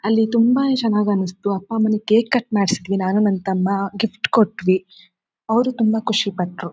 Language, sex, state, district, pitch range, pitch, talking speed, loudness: Kannada, female, Karnataka, Shimoga, 190-225 Hz, 210 Hz, 160 wpm, -19 LUFS